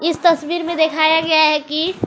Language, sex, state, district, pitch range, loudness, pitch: Hindi, female, Jharkhand, Garhwa, 315-340 Hz, -16 LUFS, 320 Hz